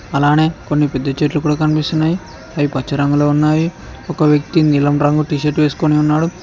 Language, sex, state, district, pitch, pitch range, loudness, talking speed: Telugu, male, Telangana, Mahabubabad, 150 Hz, 145-155 Hz, -15 LUFS, 170 wpm